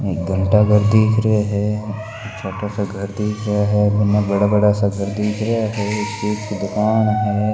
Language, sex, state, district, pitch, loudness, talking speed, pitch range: Marwari, male, Rajasthan, Nagaur, 105 Hz, -18 LUFS, 185 wpm, 100-105 Hz